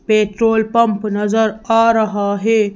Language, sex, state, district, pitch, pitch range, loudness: Hindi, female, Madhya Pradesh, Bhopal, 220 Hz, 210-225 Hz, -15 LUFS